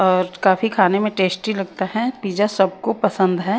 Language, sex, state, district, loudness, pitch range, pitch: Hindi, female, Haryana, Rohtak, -19 LUFS, 185-210 Hz, 195 Hz